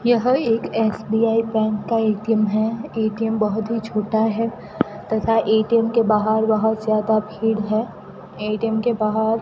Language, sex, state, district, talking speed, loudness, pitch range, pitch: Hindi, female, Rajasthan, Bikaner, 145 wpm, -20 LUFS, 215-225 Hz, 220 Hz